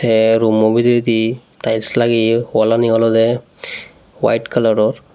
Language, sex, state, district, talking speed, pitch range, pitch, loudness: Chakma, male, Tripura, Unakoti, 115 wpm, 110-120 Hz, 115 Hz, -15 LUFS